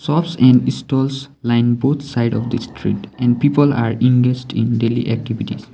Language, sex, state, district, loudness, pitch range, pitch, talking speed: English, male, Sikkim, Gangtok, -17 LUFS, 115-135 Hz, 125 Hz, 165 wpm